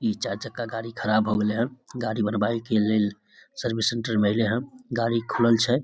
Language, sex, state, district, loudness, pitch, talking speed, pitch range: Maithili, male, Bihar, Samastipur, -25 LUFS, 115 Hz, 205 wpm, 110-120 Hz